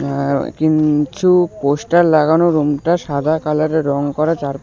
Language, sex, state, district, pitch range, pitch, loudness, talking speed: Bengali, male, West Bengal, Alipurduar, 145-165 Hz, 155 Hz, -15 LUFS, 130 wpm